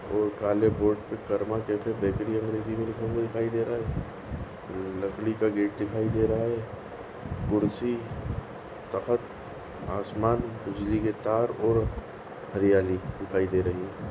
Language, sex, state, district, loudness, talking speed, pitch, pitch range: Hindi, female, Goa, North and South Goa, -29 LUFS, 130 wpm, 110 Hz, 100-115 Hz